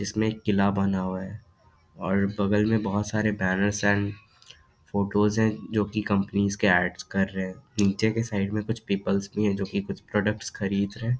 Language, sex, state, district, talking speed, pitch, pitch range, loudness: Hindi, male, Bihar, Darbhanga, 185 wpm, 100 Hz, 100-105 Hz, -26 LUFS